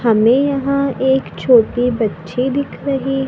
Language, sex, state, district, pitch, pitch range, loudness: Hindi, female, Maharashtra, Gondia, 265 Hz, 240-275 Hz, -16 LUFS